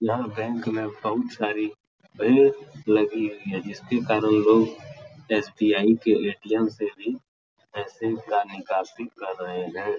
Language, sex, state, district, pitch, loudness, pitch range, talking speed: Hindi, male, Uttar Pradesh, Etah, 110 Hz, -24 LUFS, 105-120 Hz, 140 wpm